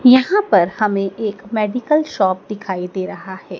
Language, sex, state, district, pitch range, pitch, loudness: Hindi, female, Madhya Pradesh, Dhar, 190-245 Hz, 205 Hz, -18 LUFS